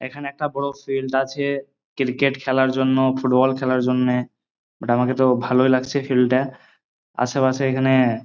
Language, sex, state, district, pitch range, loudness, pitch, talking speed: Bengali, male, West Bengal, Dakshin Dinajpur, 125-135 Hz, -20 LUFS, 130 Hz, 155 wpm